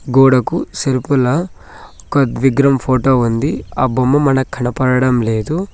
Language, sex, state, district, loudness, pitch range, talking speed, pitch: Telugu, male, Telangana, Mahabubabad, -15 LUFS, 125-140 Hz, 115 wpm, 130 Hz